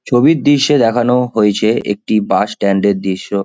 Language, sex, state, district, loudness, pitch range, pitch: Bengali, male, West Bengal, Kolkata, -13 LUFS, 100-125 Hz, 105 Hz